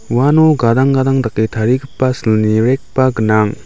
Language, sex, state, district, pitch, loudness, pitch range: Garo, male, Meghalaya, West Garo Hills, 125 Hz, -13 LUFS, 110-135 Hz